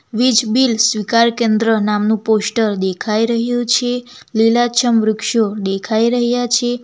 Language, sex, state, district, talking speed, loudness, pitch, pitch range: Gujarati, female, Gujarat, Valsad, 125 wpm, -15 LUFS, 230 Hz, 220-240 Hz